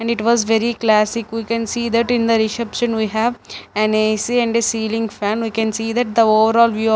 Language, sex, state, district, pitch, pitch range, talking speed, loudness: English, female, Punjab, Fazilka, 225 Hz, 220-235 Hz, 240 wpm, -17 LUFS